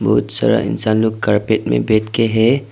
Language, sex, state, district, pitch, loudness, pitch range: Hindi, male, Arunachal Pradesh, Papum Pare, 110 Hz, -16 LUFS, 105-110 Hz